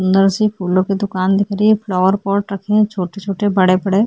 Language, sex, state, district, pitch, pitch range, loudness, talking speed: Hindi, female, Chhattisgarh, Korba, 195 Hz, 185-205 Hz, -16 LUFS, 250 wpm